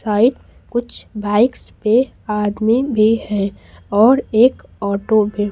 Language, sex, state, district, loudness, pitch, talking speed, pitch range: Hindi, female, Bihar, Patna, -17 LUFS, 215 Hz, 110 wpm, 210-240 Hz